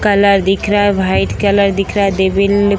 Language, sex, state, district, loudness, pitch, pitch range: Hindi, female, Bihar, Sitamarhi, -13 LUFS, 200 Hz, 195-200 Hz